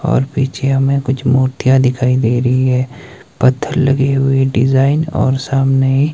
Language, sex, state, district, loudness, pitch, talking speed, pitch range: Hindi, male, Himachal Pradesh, Shimla, -14 LUFS, 135 Hz, 145 wpm, 130-135 Hz